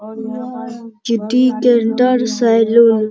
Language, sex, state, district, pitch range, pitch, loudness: Hindi, male, Bihar, Araria, 225-245 Hz, 235 Hz, -14 LUFS